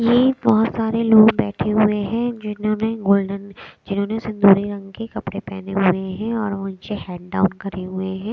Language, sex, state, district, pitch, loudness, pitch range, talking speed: Hindi, female, Bihar, West Champaran, 205 Hz, -20 LUFS, 195-220 Hz, 175 wpm